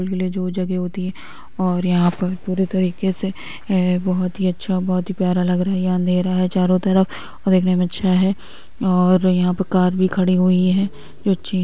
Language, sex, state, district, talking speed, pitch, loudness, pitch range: Hindi, female, Uttar Pradesh, Hamirpur, 220 wpm, 185 Hz, -19 LUFS, 180-190 Hz